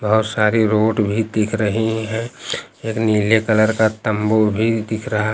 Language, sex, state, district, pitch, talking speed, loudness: Hindi, male, Uttar Pradesh, Lucknow, 110 Hz, 170 wpm, -18 LUFS